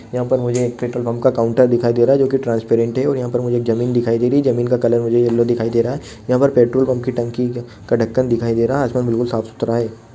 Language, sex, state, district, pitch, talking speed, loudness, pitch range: Hindi, male, Chhattisgarh, Bilaspur, 120 Hz, 295 wpm, -17 LUFS, 115-125 Hz